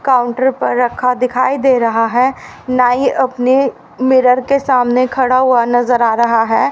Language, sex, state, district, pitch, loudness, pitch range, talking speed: Hindi, female, Haryana, Rohtak, 255 Hz, -13 LUFS, 245-260 Hz, 160 wpm